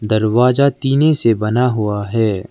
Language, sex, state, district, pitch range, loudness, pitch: Hindi, male, Arunachal Pradesh, Lower Dibang Valley, 105-130 Hz, -15 LUFS, 115 Hz